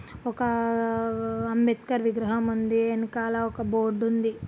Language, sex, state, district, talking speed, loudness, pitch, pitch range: Telugu, female, Andhra Pradesh, Guntur, 120 wpm, -26 LUFS, 230 Hz, 225-230 Hz